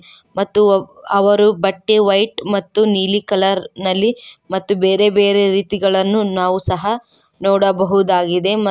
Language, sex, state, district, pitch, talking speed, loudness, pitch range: Kannada, female, Karnataka, Koppal, 200 Hz, 125 wpm, -15 LUFS, 195-205 Hz